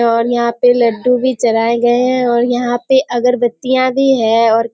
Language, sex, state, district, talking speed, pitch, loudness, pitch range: Hindi, female, Bihar, Kishanganj, 205 wpm, 245 Hz, -13 LUFS, 235-250 Hz